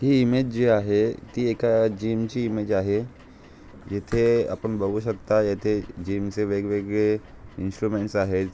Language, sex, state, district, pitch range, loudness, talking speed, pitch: Marathi, male, Maharashtra, Aurangabad, 100-115 Hz, -24 LUFS, 140 wpm, 105 Hz